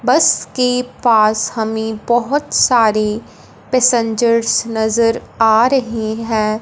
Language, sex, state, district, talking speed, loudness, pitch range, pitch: Hindi, female, Punjab, Fazilka, 100 wpm, -15 LUFS, 220-240 Hz, 230 Hz